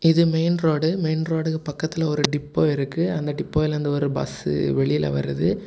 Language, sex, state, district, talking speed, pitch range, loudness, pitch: Tamil, male, Tamil Nadu, Kanyakumari, 170 wpm, 140-160 Hz, -23 LUFS, 155 Hz